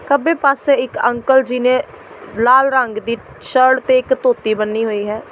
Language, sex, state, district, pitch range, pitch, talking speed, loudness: Punjabi, female, Delhi, New Delhi, 230-280 Hz, 255 Hz, 180 wpm, -15 LUFS